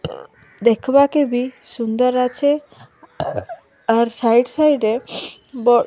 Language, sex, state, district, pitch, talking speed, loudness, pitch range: Odia, female, Odisha, Malkangiri, 250 Hz, 100 wpm, -18 LUFS, 235-280 Hz